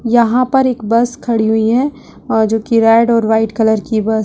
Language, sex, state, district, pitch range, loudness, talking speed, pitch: Hindi, female, Bihar, Purnia, 220-240 Hz, -13 LUFS, 240 wpm, 225 Hz